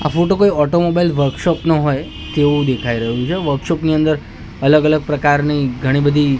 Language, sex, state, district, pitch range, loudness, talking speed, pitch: Gujarati, male, Gujarat, Gandhinagar, 135-160 Hz, -16 LUFS, 180 wpm, 145 Hz